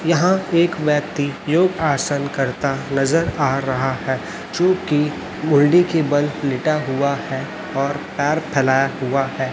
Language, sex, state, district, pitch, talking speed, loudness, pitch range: Hindi, male, Chhattisgarh, Raipur, 145 Hz, 145 wpm, -19 LUFS, 135-160 Hz